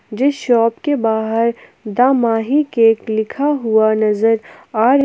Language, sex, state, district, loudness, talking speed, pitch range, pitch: Hindi, female, Jharkhand, Palamu, -16 LUFS, 145 wpm, 220-260 Hz, 230 Hz